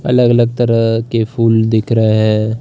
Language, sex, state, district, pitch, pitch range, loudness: Hindi, male, Delhi, New Delhi, 115 Hz, 110-120 Hz, -13 LUFS